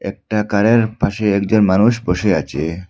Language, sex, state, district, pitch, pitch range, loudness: Bengali, male, Assam, Hailakandi, 105 Hz, 95-110 Hz, -16 LUFS